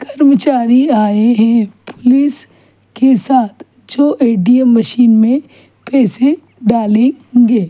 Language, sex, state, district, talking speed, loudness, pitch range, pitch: Hindi, female, Chhattisgarh, Kabirdham, 110 wpm, -11 LUFS, 230-270 Hz, 245 Hz